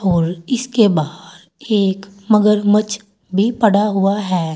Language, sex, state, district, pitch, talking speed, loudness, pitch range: Hindi, female, Uttar Pradesh, Saharanpur, 200 Hz, 120 wpm, -16 LUFS, 180-210 Hz